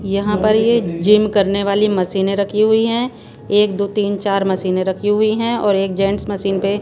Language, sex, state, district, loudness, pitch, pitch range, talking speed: Hindi, female, Bihar, Patna, -16 LUFS, 200 Hz, 195-210 Hz, 200 wpm